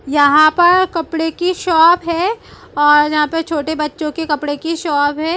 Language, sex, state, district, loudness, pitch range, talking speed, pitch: Hindi, female, Chhattisgarh, Bilaspur, -14 LUFS, 295-335 Hz, 180 wpm, 320 Hz